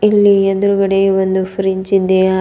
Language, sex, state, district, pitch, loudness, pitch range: Kannada, female, Karnataka, Bidar, 195 Hz, -13 LUFS, 190-200 Hz